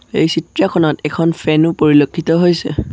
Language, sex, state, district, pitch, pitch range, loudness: Assamese, male, Assam, Sonitpur, 160 Hz, 150-165 Hz, -14 LUFS